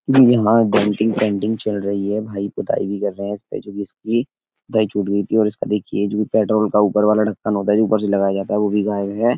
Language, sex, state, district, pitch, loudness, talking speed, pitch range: Hindi, male, Uttar Pradesh, Etah, 105 Hz, -19 LUFS, 255 wpm, 100-110 Hz